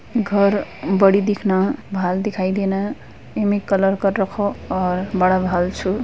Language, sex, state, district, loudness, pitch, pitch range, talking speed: Hindi, female, Uttarakhand, Uttarkashi, -19 LUFS, 195 Hz, 185-200 Hz, 140 wpm